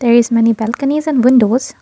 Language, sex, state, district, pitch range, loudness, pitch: English, female, Assam, Kamrup Metropolitan, 230-275 Hz, -13 LUFS, 245 Hz